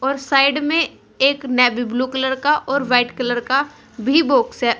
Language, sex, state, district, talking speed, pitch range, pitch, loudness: Hindi, female, Uttar Pradesh, Saharanpur, 185 wpm, 250-285 Hz, 270 Hz, -18 LUFS